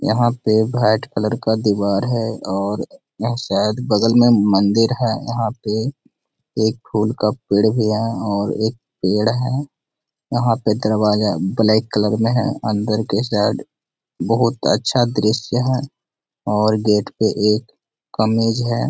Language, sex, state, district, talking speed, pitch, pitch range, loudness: Hindi, male, Bihar, Gaya, 145 wpm, 110 Hz, 105-120 Hz, -18 LUFS